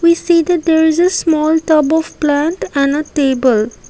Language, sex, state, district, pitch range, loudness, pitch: English, female, Assam, Kamrup Metropolitan, 290-335 Hz, -13 LUFS, 320 Hz